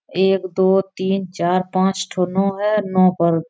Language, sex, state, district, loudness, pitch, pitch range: Maithili, female, Bihar, Araria, -18 LUFS, 190 Hz, 185-195 Hz